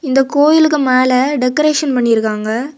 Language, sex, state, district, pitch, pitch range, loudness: Tamil, female, Tamil Nadu, Kanyakumari, 265 Hz, 250-295 Hz, -13 LUFS